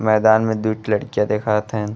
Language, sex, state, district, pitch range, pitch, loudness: Bhojpuri, male, Uttar Pradesh, Gorakhpur, 105-110 Hz, 110 Hz, -19 LUFS